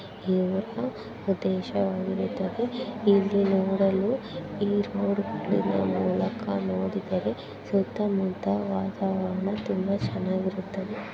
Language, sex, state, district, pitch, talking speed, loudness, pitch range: Kannada, male, Karnataka, Bijapur, 195 Hz, 70 wpm, -27 LUFS, 185-200 Hz